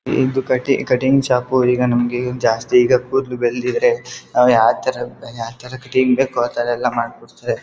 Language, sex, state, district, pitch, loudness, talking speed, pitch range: Kannada, male, Karnataka, Dakshina Kannada, 125 Hz, -17 LUFS, 150 wpm, 120-130 Hz